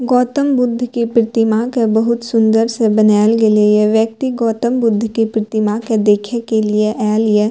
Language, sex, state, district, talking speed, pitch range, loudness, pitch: Maithili, female, Bihar, Purnia, 175 wpm, 215-235 Hz, -14 LUFS, 225 Hz